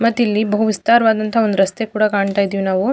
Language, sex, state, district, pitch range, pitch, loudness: Kannada, female, Karnataka, Mysore, 200-225 Hz, 215 Hz, -16 LUFS